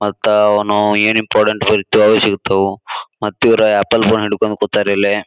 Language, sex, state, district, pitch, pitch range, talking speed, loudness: Kannada, male, Karnataka, Bijapur, 105 Hz, 105-110 Hz, 150 wpm, -13 LUFS